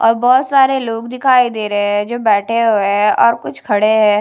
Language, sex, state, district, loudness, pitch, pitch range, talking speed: Hindi, female, Punjab, Kapurthala, -14 LUFS, 225 Hz, 210-250 Hz, 225 wpm